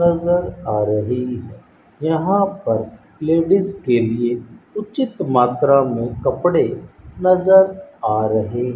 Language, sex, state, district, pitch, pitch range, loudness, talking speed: Hindi, male, Rajasthan, Bikaner, 130 Hz, 115-185 Hz, -18 LUFS, 115 wpm